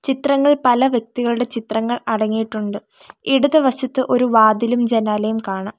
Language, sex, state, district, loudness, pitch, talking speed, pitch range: Malayalam, female, Kerala, Kollam, -17 LUFS, 240 Hz, 105 wpm, 220-260 Hz